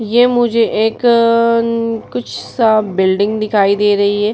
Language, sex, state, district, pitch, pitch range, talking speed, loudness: Hindi, female, Bihar, Vaishali, 220 Hz, 200-230 Hz, 180 wpm, -13 LUFS